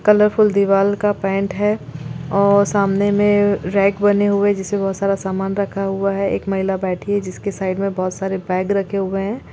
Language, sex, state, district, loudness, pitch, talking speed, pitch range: Hindi, female, Bihar, Gopalganj, -18 LUFS, 195 Hz, 200 wpm, 195-205 Hz